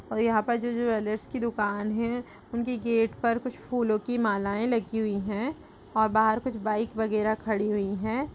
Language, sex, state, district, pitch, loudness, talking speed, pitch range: Hindi, female, Uttar Pradesh, Budaun, 220 Hz, -28 LUFS, 195 wpm, 215-235 Hz